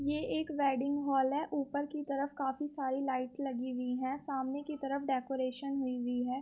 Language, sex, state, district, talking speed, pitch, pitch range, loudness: Hindi, female, Uttar Pradesh, Muzaffarnagar, 195 wpm, 275 Hz, 260-285 Hz, -35 LUFS